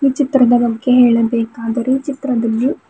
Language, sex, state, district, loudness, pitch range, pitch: Kannada, female, Karnataka, Bidar, -15 LUFS, 230-270 Hz, 245 Hz